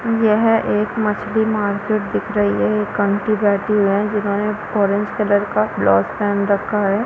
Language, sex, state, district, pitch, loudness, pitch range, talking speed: Hindi, female, Chhattisgarh, Balrampur, 205 Hz, -18 LUFS, 200-215 Hz, 155 wpm